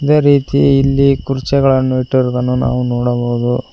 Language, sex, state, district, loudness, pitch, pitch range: Kannada, male, Karnataka, Koppal, -14 LUFS, 130 Hz, 125-140 Hz